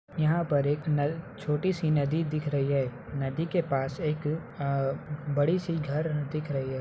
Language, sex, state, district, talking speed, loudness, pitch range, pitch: Hindi, male, Bihar, Muzaffarpur, 165 wpm, -29 LUFS, 140-160 Hz, 150 Hz